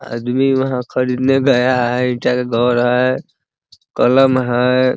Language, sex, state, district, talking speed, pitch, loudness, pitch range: Hindi, male, Bihar, Muzaffarpur, 155 wpm, 125 Hz, -15 LUFS, 125-130 Hz